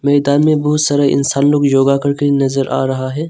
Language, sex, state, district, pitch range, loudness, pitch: Hindi, male, Arunachal Pradesh, Longding, 135-145 Hz, -13 LUFS, 140 Hz